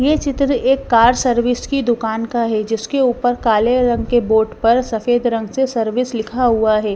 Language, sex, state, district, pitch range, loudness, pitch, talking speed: Hindi, female, Bihar, West Champaran, 225-255 Hz, -16 LUFS, 240 Hz, 200 wpm